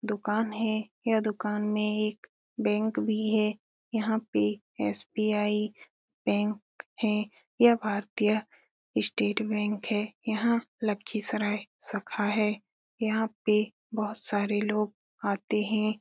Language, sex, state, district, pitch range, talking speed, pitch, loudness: Hindi, female, Bihar, Lakhisarai, 210-220 Hz, 115 wpm, 215 Hz, -29 LUFS